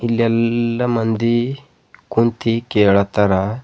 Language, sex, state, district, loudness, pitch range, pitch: Kannada, male, Karnataka, Bidar, -17 LUFS, 105-120 Hz, 115 Hz